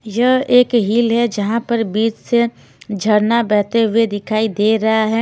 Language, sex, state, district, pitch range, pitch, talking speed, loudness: Hindi, female, Himachal Pradesh, Shimla, 215-235 Hz, 225 Hz, 170 wpm, -16 LUFS